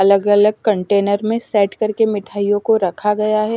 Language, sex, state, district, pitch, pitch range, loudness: Hindi, female, Bihar, West Champaran, 210 Hz, 200-215 Hz, -16 LUFS